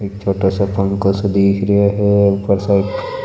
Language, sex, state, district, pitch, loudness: Marwari, male, Rajasthan, Nagaur, 100 Hz, -15 LUFS